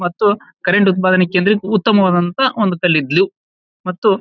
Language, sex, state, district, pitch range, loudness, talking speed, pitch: Kannada, male, Karnataka, Bijapur, 180-210 Hz, -15 LUFS, 115 wpm, 190 Hz